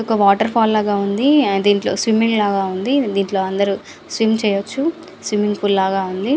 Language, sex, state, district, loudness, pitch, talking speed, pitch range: Telugu, female, Andhra Pradesh, Visakhapatnam, -17 LUFS, 205 Hz, 115 wpm, 200-225 Hz